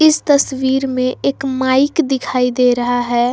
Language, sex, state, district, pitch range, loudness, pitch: Hindi, female, Jharkhand, Garhwa, 250-270 Hz, -15 LUFS, 260 Hz